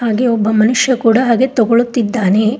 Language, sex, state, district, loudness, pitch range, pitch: Kannada, female, Karnataka, Koppal, -13 LUFS, 220-245 Hz, 230 Hz